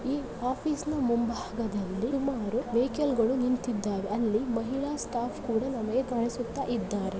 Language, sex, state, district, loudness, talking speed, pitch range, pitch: Kannada, female, Karnataka, Belgaum, -30 LUFS, 100 wpm, 225-260 Hz, 240 Hz